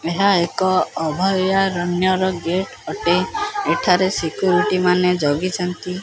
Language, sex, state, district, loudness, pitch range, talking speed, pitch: Odia, male, Odisha, Khordha, -19 LUFS, 175-190 Hz, 90 wpm, 180 Hz